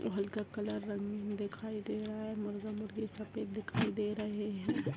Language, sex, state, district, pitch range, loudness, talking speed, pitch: Hindi, female, Chhattisgarh, Bastar, 205-215 Hz, -39 LUFS, 180 wpm, 210 Hz